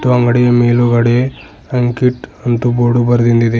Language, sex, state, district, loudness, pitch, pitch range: Kannada, male, Karnataka, Bidar, -13 LUFS, 120 Hz, 120-125 Hz